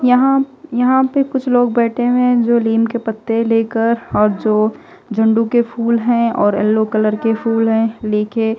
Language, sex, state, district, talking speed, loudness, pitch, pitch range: Hindi, female, Punjab, Fazilka, 180 wpm, -15 LUFS, 230 Hz, 220-245 Hz